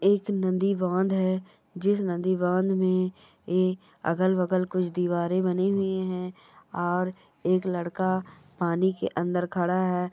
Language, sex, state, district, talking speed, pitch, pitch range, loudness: Hindi, female, Bihar, Bhagalpur, 135 wpm, 185 Hz, 180-185 Hz, -27 LUFS